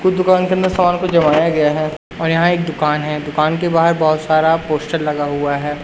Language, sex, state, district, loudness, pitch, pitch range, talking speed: Hindi, male, Madhya Pradesh, Umaria, -16 LUFS, 160 Hz, 150-170 Hz, 235 wpm